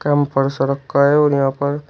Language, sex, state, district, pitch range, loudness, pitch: Hindi, male, Uttar Pradesh, Shamli, 135-145 Hz, -17 LUFS, 140 Hz